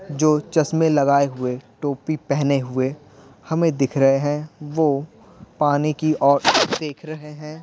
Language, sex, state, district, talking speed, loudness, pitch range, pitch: Hindi, male, Bihar, Patna, 140 wpm, -20 LUFS, 140-155 Hz, 145 Hz